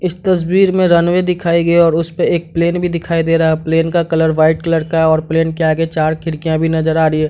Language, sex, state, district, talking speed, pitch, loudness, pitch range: Hindi, male, Bihar, Madhepura, 280 wpm, 165 Hz, -14 LUFS, 160-170 Hz